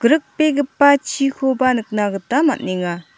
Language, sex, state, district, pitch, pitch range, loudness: Garo, female, Meghalaya, South Garo Hills, 265 Hz, 215-285 Hz, -17 LUFS